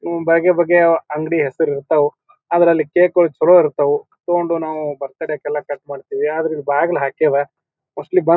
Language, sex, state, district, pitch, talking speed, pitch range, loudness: Kannada, male, Karnataka, Bijapur, 165 Hz, 165 wpm, 145-175 Hz, -17 LUFS